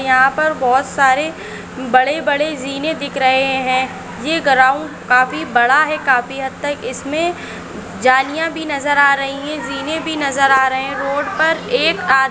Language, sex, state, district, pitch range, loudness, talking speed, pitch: Hindi, female, Maharashtra, Nagpur, 260-300 Hz, -15 LUFS, 175 wpm, 275 Hz